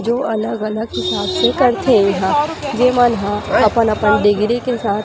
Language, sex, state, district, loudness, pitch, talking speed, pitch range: Chhattisgarhi, female, Chhattisgarh, Rajnandgaon, -16 LUFS, 220 Hz, 155 wpm, 210-245 Hz